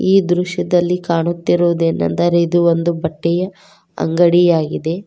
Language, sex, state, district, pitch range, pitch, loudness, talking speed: Kannada, female, Karnataka, Koppal, 165-180 Hz, 175 Hz, -16 LUFS, 85 wpm